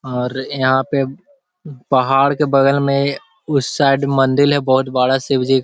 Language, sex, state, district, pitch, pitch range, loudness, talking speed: Hindi, male, Bihar, Jahanabad, 135 Hz, 130-140 Hz, -16 LUFS, 170 wpm